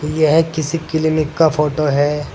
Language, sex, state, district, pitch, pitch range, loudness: Hindi, male, Uttar Pradesh, Saharanpur, 155 Hz, 150-160 Hz, -16 LUFS